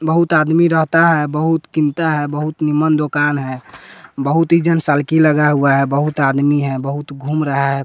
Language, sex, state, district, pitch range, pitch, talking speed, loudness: Hindi, male, Bihar, West Champaran, 140-160 Hz, 150 Hz, 190 wpm, -15 LUFS